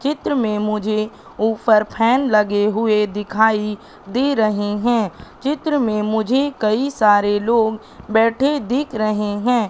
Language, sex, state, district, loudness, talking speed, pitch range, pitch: Hindi, female, Madhya Pradesh, Katni, -18 LUFS, 130 wpm, 210-245 Hz, 220 Hz